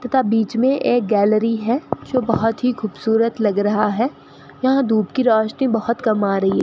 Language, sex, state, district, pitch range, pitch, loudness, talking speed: Hindi, female, Rajasthan, Bikaner, 215-250 Hz, 225 Hz, -18 LUFS, 200 wpm